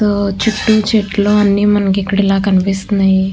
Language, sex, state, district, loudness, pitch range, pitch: Telugu, female, Andhra Pradesh, Krishna, -13 LUFS, 195-210 Hz, 200 Hz